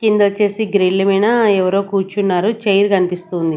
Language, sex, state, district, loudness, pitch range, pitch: Telugu, female, Andhra Pradesh, Sri Satya Sai, -15 LUFS, 185-210 Hz, 200 Hz